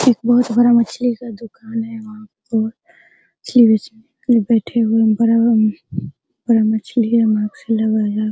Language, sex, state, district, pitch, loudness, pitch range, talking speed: Hindi, female, Bihar, Araria, 225 Hz, -16 LUFS, 220-235 Hz, 70 wpm